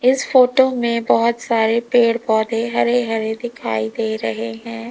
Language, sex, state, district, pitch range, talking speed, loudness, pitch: Hindi, female, Uttar Pradesh, Lalitpur, 220-240 Hz, 160 wpm, -18 LUFS, 230 Hz